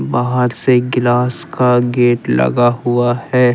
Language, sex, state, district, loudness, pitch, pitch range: Hindi, male, Jharkhand, Deoghar, -14 LUFS, 120 Hz, 120-125 Hz